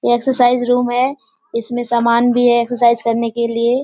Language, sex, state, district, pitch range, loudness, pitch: Hindi, female, Bihar, Kishanganj, 235-245 Hz, -15 LUFS, 240 Hz